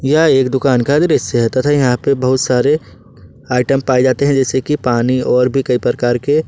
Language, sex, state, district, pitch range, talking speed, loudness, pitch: Hindi, male, Jharkhand, Ranchi, 125-135 Hz, 220 wpm, -14 LUFS, 130 Hz